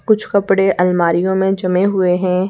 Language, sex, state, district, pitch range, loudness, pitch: Hindi, female, Madhya Pradesh, Bhopal, 180-195 Hz, -15 LUFS, 190 Hz